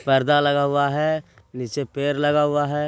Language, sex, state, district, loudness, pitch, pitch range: Hindi, male, Bihar, Jahanabad, -21 LUFS, 145 Hz, 140-145 Hz